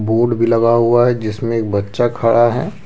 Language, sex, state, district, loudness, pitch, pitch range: Hindi, male, Jharkhand, Deoghar, -15 LUFS, 115 Hz, 115-120 Hz